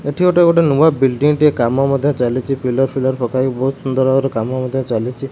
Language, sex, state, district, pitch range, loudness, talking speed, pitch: Odia, male, Odisha, Khordha, 130-145 Hz, -15 LUFS, 215 wpm, 135 Hz